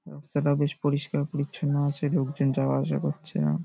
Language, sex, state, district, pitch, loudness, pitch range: Bengali, male, West Bengal, Paschim Medinipur, 145 Hz, -27 LUFS, 135-145 Hz